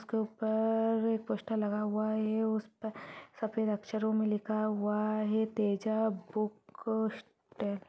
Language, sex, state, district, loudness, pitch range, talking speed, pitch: Hindi, female, Chhattisgarh, Balrampur, -33 LUFS, 210-220 Hz, 135 wpm, 220 Hz